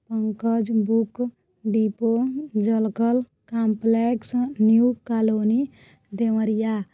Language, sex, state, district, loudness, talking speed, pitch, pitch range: Bhojpuri, female, Uttar Pradesh, Deoria, -23 LUFS, 70 wpm, 225 Hz, 220-235 Hz